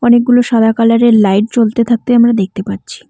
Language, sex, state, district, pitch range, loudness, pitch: Bengali, female, West Bengal, Cooch Behar, 215-240 Hz, -10 LUFS, 230 Hz